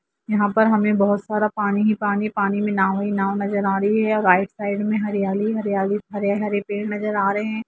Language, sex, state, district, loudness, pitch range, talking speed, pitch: Hindi, female, Jharkhand, Jamtara, -21 LUFS, 200-210 Hz, 275 wpm, 205 Hz